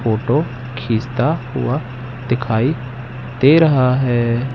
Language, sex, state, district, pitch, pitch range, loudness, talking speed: Hindi, male, Madhya Pradesh, Katni, 125 Hz, 120-130 Hz, -17 LUFS, 90 wpm